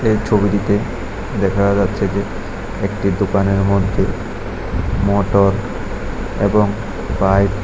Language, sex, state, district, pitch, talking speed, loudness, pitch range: Bengali, male, Tripura, West Tripura, 100 Hz, 95 wpm, -18 LUFS, 100-105 Hz